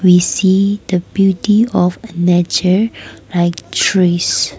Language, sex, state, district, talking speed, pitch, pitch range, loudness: English, female, Nagaland, Kohima, 115 wpm, 185 Hz, 175-200 Hz, -14 LUFS